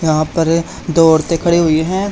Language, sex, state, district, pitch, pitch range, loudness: Hindi, male, Haryana, Charkhi Dadri, 165 Hz, 160-170 Hz, -14 LUFS